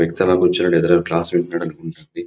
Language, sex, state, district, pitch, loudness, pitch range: Telugu, male, Andhra Pradesh, Visakhapatnam, 85 Hz, -17 LUFS, 85-90 Hz